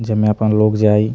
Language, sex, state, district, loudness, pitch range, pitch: Bhojpuri, male, Bihar, Muzaffarpur, -15 LUFS, 105-110 Hz, 110 Hz